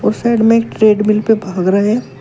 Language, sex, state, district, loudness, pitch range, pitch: Hindi, female, Uttar Pradesh, Shamli, -13 LUFS, 210-225 Hz, 215 Hz